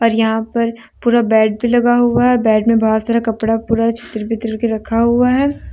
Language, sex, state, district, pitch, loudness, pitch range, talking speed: Hindi, female, Jharkhand, Deoghar, 230 Hz, -15 LUFS, 220-235 Hz, 220 wpm